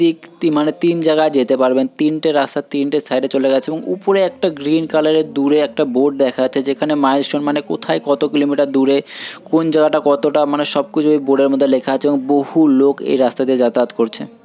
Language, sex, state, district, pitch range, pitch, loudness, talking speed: Bengali, male, West Bengal, Purulia, 135-155 Hz, 145 Hz, -15 LUFS, 210 wpm